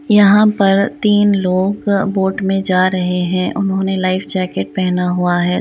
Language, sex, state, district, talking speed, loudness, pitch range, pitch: Hindi, female, Bihar, East Champaran, 160 wpm, -15 LUFS, 180-200 Hz, 190 Hz